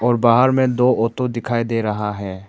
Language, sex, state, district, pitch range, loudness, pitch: Hindi, male, Arunachal Pradesh, Papum Pare, 105-125 Hz, -18 LUFS, 115 Hz